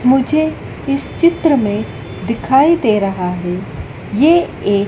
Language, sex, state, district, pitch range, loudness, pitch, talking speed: Hindi, female, Madhya Pradesh, Dhar, 200-310 Hz, -15 LUFS, 260 Hz, 125 wpm